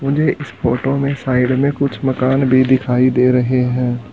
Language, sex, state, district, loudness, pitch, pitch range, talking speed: Hindi, male, Haryana, Rohtak, -16 LUFS, 130 Hz, 125-135 Hz, 190 wpm